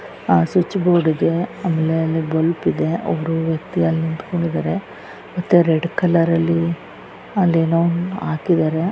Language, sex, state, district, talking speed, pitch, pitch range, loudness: Kannada, female, Karnataka, Raichur, 120 wpm, 165 Hz, 160-175 Hz, -19 LUFS